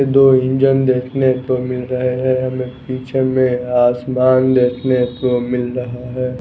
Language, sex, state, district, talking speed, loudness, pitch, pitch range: Hindi, male, Bihar, West Champaran, 150 wpm, -16 LUFS, 130 Hz, 125-130 Hz